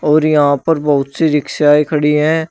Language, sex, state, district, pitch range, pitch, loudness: Hindi, male, Uttar Pradesh, Shamli, 145-155 Hz, 150 Hz, -13 LUFS